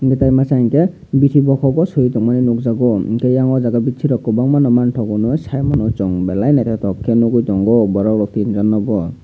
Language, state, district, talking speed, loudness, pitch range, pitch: Kokborok, Tripura, Dhalai, 210 wpm, -15 LUFS, 110-135 Hz, 120 Hz